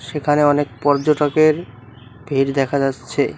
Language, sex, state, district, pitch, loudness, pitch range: Bengali, male, West Bengal, Cooch Behar, 140 Hz, -18 LUFS, 135-150 Hz